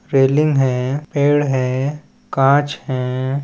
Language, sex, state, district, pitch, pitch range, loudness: Chhattisgarhi, male, Chhattisgarh, Balrampur, 135 Hz, 130-145 Hz, -17 LUFS